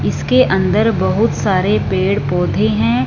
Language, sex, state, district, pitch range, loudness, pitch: Hindi, female, Punjab, Fazilka, 120-190 Hz, -15 LUFS, 130 Hz